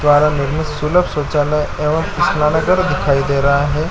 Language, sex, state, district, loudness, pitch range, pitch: Hindi, male, Chhattisgarh, Korba, -16 LUFS, 145-155 Hz, 150 Hz